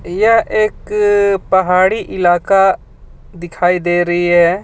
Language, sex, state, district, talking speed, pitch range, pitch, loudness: Hindi, male, Jharkhand, Ranchi, 105 wpm, 175-200 Hz, 185 Hz, -13 LUFS